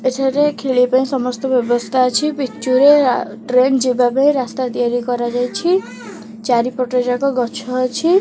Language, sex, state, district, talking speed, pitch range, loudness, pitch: Odia, female, Odisha, Khordha, 130 wpm, 245-270 Hz, -16 LUFS, 255 Hz